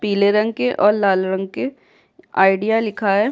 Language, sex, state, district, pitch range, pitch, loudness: Hindi, female, Bihar, Kishanganj, 195-225 Hz, 205 Hz, -18 LUFS